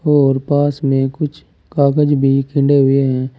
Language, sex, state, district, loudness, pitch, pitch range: Hindi, male, Uttar Pradesh, Saharanpur, -15 LUFS, 140 Hz, 135-145 Hz